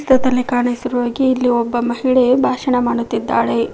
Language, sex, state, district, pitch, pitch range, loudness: Kannada, female, Karnataka, Koppal, 245 Hz, 240-255 Hz, -16 LUFS